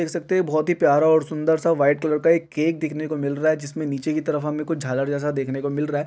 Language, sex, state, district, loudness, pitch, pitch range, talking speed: Hindi, male, Chhattisgarh, Kabirdham, -22 LUFS, 155 Hz, 145-160 Hz, 305 wpm